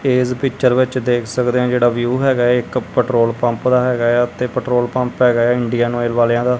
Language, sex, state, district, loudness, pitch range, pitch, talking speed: Punjabi, male, Punjab, Kapurthala, -16 LUFS, 120-125 Hz, 125 Hz, 220 wpm